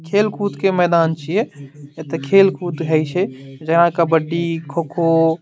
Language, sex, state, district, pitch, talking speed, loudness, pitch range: Maithili, male, Bihar, Madhepura, 165 Hz, 145 wpm, -18 LUFS, 160-175 Hz